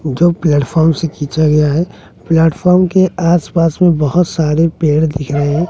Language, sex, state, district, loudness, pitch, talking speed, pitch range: Hindi, male, Bihar, West Champaran, -13 LUFS, 165 Hz, 170 wpm, 150-175 Hz